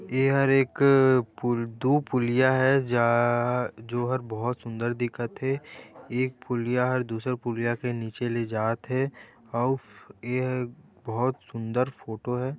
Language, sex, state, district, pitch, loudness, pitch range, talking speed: Chhattisgarhi, male, Chhattisgarh, Raigarh, 125 Hz, -26 LUFS, 120-130 Hz, 125 wpm